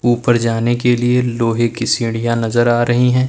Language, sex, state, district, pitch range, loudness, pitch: Hindi, male, Uttar Pradesh, Lucknow, 115-120 Hz, -15 LUFS, 120 Hz